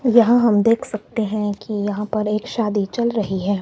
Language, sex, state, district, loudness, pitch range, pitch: Hindi, male, Himachal Pradesh, Shimla, -20 LUFS, 205-230 Hz, 215 Hz